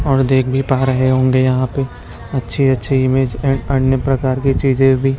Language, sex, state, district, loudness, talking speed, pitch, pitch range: Hindi, male, Chhattisgarh, Raipur, -15 LUFS, 210 wpm, 130 Hz, 130-135 Hz